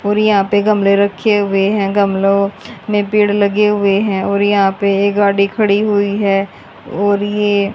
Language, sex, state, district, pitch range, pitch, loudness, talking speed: Hindi, female, Haryana, Rohtak, 200-205 Hz, 200 Hz, -14 LUFS, 180 wpm